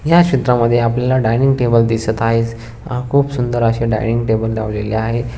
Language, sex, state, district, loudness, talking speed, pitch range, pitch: Marathi, male, Maharashtra, Sindhudurg, -16 LUFS, 180 wpm, 115-125 Hz, 115 Hz